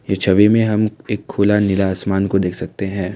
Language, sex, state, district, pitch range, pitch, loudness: Hindi, male, Assam, Kamrup Metropolitan, 95-105 Hz, 100 Hz, -17 LUFS